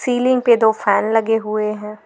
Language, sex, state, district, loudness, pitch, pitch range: Hindi, female, Jharkhand, Garhwa, -16 LUFS, 220 Hz, 215-245 Hz